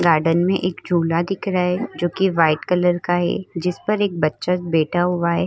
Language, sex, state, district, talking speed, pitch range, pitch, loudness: Hindi, female, Uttar Pradesh, Muzaffarnagar, 210 wpm, 170-180 Hz, 175 Hz, -20 LUFS